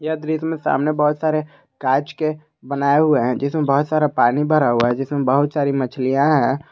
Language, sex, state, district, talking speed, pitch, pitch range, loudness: Hindi, male, Jharkhand, Garhwa, 205 wpm, 145 Hz, 135-155 Hz, -19 LUFS